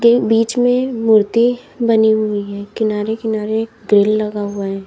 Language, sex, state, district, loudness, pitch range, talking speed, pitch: Hindi, female, Uttar Pradesh, Lalitpur, -16 LUFS, 210-230 Hz, 145 wpm, 220 Hz